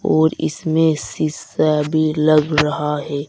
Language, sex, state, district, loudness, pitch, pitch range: Hindi, male, Uttar Pradesh, Saharanpur, -18 LUFS, 155 Hz, 150-155 Hz